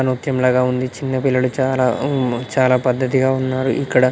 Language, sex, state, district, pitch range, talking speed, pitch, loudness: Telugu, male, Telangana, Nalgonda, 125-130 Hz, 160 wpm, 130 Hz, -18 LUFS